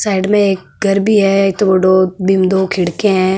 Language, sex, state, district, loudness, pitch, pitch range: Marwari, female, Rajasthan, Nagaur, -13 LUFS, 190 Hz, 185-200 Hz